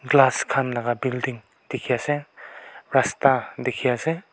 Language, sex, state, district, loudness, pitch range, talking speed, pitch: Nagamese, male, Nagaland, Kohima, -23 LUFS, 120-135 Hz, 125 wpm, 130 Hz